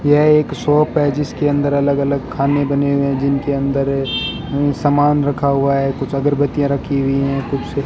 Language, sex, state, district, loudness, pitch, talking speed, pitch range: Hindi, male, Rajasthan, Bikaner, -16 LUFS, 140 Hz, 190 wpm, 140-145 Hz